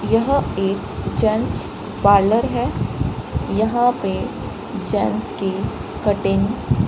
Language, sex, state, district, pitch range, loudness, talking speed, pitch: Hindi, female, Rajasthan, Bikaner, 200-245 Hz, -20 LUFS, 95 wpm, 225 Hz